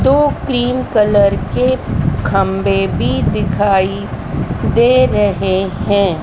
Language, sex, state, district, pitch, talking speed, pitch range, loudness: Hindi, female, Madhya Pradesh, Dhar, 195 Hz, 95 wpm, 185-210 Hz, -14 LUFS